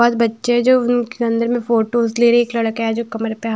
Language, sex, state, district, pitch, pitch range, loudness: Hindi, female, Himachal Pradesh, Shimla, 235 Hz, 225-240 Hz, -17 LUFS